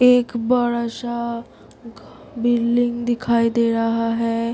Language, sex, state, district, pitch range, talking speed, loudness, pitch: Hindi, female, Bihar, Gopalganj, 230-240 Hz, 90 wpm, -20 LUFS, 235 Hz